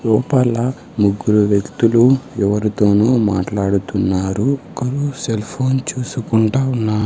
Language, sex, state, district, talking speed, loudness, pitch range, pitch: Telugu, male, Andhra Pradesh, Sri Satya Sai, 85 wpm, -17 LUFS, 105-130 Hz, 110 Hz